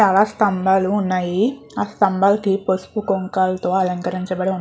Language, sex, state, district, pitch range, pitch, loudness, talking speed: Telugu, female, Andhra Pradesh, Guntur, 185-200 Hz, 190 Hz, -19 LUFS, 115 wpm